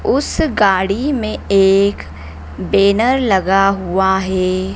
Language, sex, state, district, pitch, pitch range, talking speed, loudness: Hindi, female, Madhya Pradesh, Dhar, 195 Hz, 185-200 Hz, 100 wpm, -14 LUFS